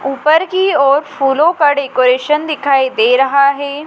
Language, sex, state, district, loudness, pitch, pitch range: Hindi, female, Madhya Pradesh, Dhar, -12 LUFS, 280 Hz, 270-300 Hz